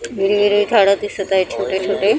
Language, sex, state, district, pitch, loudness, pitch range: Marathi, female, Maharashtra, Mumbai Suburban, 200 Hz, -16 LUFS, 195-205 Hz